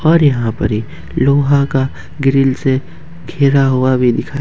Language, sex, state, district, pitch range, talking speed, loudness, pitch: Hindi, male, Jharkhand, Ranchi, 130-145 Hz, 165 wpm, -14 LUFS, 135 Hz